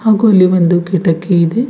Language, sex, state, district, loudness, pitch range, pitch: Kannada, female, Karnataka, Bidar, -11 LUFS, 175-215 Hz, 185 Hz